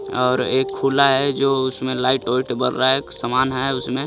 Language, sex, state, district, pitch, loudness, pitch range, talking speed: Hindi, male, Jharkhand, Garhwa, 130 Hz, -18 LUFS, 130-135 Hz, 190 wpm